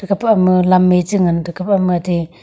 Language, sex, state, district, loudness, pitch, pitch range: Wancho, female, Arunachal Pradesh, Longding, -14 LUFS, 185 Hz, 175-195 Hz